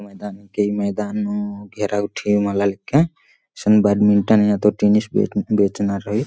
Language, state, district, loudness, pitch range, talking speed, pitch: Kurukh, Chhattisgarh, Jashpur, -19 LUFS, 100-105 Hz, 155 wpm, 105 Hz